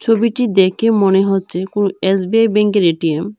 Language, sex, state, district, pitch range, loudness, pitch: Bengali, female, Tripura, Dhalai, 190-225 Hz, -15 LUFS, 195 Hz